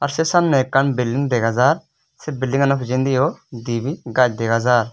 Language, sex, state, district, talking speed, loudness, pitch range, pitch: Chakma, male, Tripura, West Tripura, 135 wpm, -19 LUFS, 120-140 Hz, 130 Hz